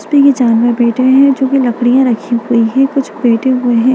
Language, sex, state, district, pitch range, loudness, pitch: Hindi, female, Bihar, Bhagalpur, 235-270 Hz, -11 LUFS, 250 Hz